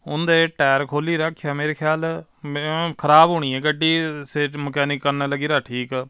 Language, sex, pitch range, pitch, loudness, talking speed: Punjabi, male, 140-160 Hz, 150 Hz, -20 LUFS, 155 wpm